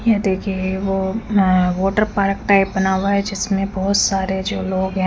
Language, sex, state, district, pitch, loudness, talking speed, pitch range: Hindi, female, Chandigarh, Chandigarh, 195 Hz, -18 LUFS, 180 wpm, 190-200 Hz